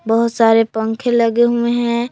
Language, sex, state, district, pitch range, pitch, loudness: Hindi, female, Jharkhand, Palamu, 225-240 Hz, 235 Hz, -15 LUFS